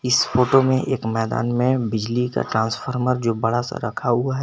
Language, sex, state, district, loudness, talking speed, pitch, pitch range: Hindi, male, Jharkhand, Garhwa, -21 LUFS, 215 wpm, 125 Hz, 115-130 Hz